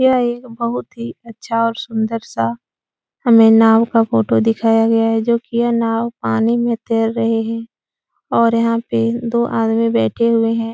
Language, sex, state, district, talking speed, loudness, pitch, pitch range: Hindi, female, Uttar Pradesh, Etah, 180 wpm, -16 LUFS, 230 Hz, 225-235 Hz